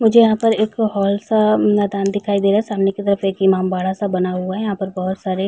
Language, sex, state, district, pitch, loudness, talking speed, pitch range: Hindi, female, Uttar Pradesh, Jalaun, 200 Hz, -17 LUFS, 275 wpm, 190-215 Hz